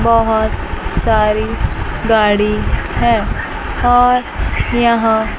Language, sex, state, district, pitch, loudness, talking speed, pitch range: Hindi, female, Chandigarh, Chandigarh, 225 Hz, -15 LUFS, 65 wpm, 215-235 Hz